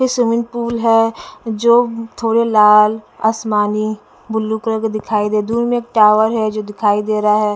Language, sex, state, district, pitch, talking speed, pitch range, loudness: Hindi, female, Bihar, West Champaran, 220 Hz, 180 wpm, 215-230 Hz, -15 LUFS